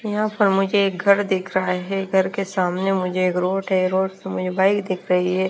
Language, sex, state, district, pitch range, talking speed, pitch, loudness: Hindi, female, Himachal Pradesh, Shimla, 185-195 Hz, 230 wpm, 190 Hz, -21 LUFS